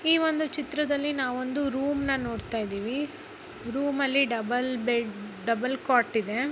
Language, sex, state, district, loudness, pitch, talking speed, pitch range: Kannada, female, Karnataka, Bijapur, -28 LUFS, 265 Hz, 140 wpm, 235-290 Hz